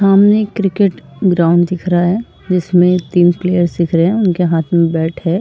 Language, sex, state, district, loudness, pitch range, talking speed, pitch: Hindi, female, Uttar Pradesh, Varanasi, -13 LUFS, 170-190 Hz, 190 wpm, 180 Hz